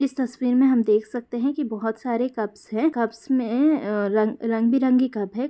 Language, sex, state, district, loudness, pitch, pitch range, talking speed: Hindi, female, Bihar, Jahanabad, -23 LUFS, 240 Hz, 220-260 Hz, 195 wpm